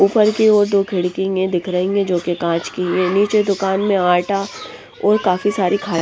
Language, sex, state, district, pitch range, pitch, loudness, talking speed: Hindi, female, Punjab, Pathankot, 180-200 Hz, 195 Hz, -17 LUFS, 210 wpm